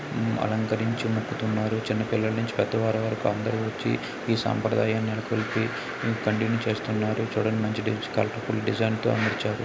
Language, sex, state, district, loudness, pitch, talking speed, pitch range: Telugu, male, Andhra Pradesh, Srikakulam, -27 LUFS, 110 Hz, 105 wpm, 110-115 Hz